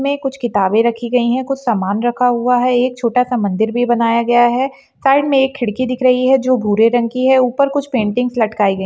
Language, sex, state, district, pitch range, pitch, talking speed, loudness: Kumaoni, female, Uttarakhand, Uttarkashi, 230-255 Hz, 245 Hz, 250 wpm, -15 LUFS